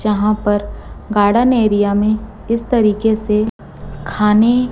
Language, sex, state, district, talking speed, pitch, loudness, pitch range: Hindi, female, Chhattisgarh, Raipur, 115 wpm, 210 Hz, -15 LUFS, 205-225 Hz